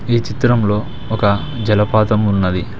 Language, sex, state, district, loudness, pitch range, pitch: Telugu, male, Telangana, Mahabubabad, -16 LUFS, 105-115 Hz, 105 Hz